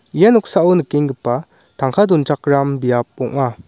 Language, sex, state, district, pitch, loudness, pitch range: Garo, male, Meghalaya, West Garo Hills, 140 Hz, -16 LUFS, 125-160 Hz